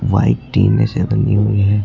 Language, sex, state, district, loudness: Hindi, male, Uttar Pradesh, Lucknow, -15 LUFS